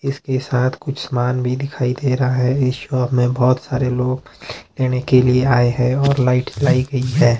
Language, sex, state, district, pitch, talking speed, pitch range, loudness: Hindi, male, Himachal Pradesh, Shimla, 130 Hz, 205 wpm, 125-135 Hz, -18 LUFS